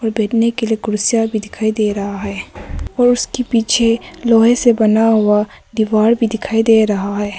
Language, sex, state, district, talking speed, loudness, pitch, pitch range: Hindi, female, Arunachal Pradesh, Papum Pare, 185 wpm, -15 LUFS, 220 Hz, 215-230 Hz